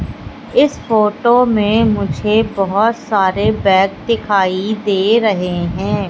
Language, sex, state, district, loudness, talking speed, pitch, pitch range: Hindi, female, Madhya Pradesh, Katni, -15 LUFS, 110 wpm, 210 Hz, 195-225 Hz